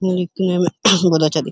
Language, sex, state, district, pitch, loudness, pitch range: Hindi, male, Uttar Pradesh, Hamirpur, 180 Hz, -16 LUFS, 165-190 Hz